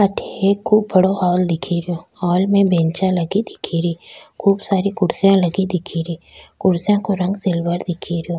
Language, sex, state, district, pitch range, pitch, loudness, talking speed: Rajasthani, female, Rajasthan, Nagaur, 175-195 Hz, 185 Hz, -18 LUFS, 180 wpm